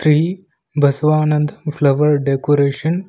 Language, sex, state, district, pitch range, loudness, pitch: Kannada, male, Karnataka, Koppal, 145-160 Hz, -16 LUFS, 150 Hz